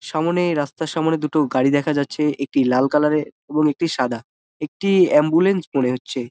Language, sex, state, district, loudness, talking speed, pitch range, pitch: Bengali, male, West Bengal, Jalpaiguri, -19 LUFS, 170 wpm, 135-160 Hz, 150 Hz